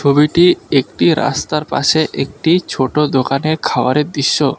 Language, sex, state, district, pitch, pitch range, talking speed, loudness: Bengali, male, West Bengal, Alipurduar, 150 Hz, 135-155 Hz, 115 wpm, -14 LUFS